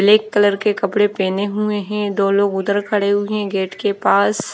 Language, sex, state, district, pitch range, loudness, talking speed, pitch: Hindi, female, Odisha, Nuapada, 200-210 Hz, -17 LUFS, 210 wpm, 205 Hz